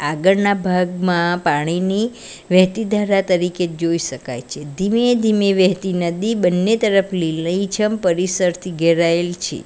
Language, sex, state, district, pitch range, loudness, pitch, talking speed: Gujarati, female, Gujarat, Valsad, 170-200 Hz, -18 LUFS, 180 Hz, 110 wpm